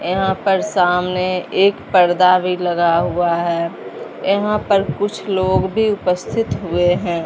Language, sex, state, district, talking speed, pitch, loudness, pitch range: Hindi, male, Punjab, Fazilka, 140 wpm, 180 Hz, -17 LUFS, 175-195 Hz